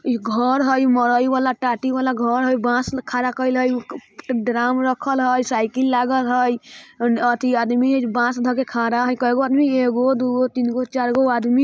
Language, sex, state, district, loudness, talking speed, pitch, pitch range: Bajjika, male, Bihar, Vaishali, -19 LUFS, 200 wpm, 250 Hz, 245-260 Hz